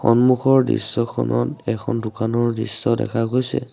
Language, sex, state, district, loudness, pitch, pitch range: Assamese, male, Assam, Sonitpur, -20 LUFS, 115 Hz, 110-125 Hz